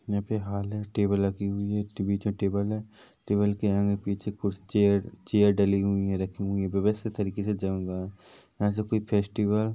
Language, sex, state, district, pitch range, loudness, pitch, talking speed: Hindi, male, Chhattisgarh, Rajnandgaon, 100-105 Hz, -28 LUFS, 100 Hz, 195 wpm